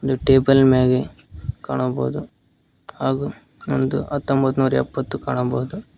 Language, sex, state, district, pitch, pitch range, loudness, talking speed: Kannada, male, Karnataka, Koppal, 130 Hz, 125-135 Hz, -20 LUFS, 100 wpm